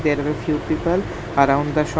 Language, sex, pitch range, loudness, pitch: English, male, 145-155 Hz, -20 LUFS, 150 Hz